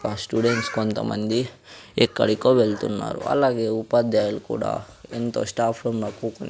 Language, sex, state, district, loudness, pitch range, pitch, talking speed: Telugu, female, Andhra Pradesh, Sri Satya Sai, -23 LUFS, 110-120 Hz, 115 Hz, 120 wpm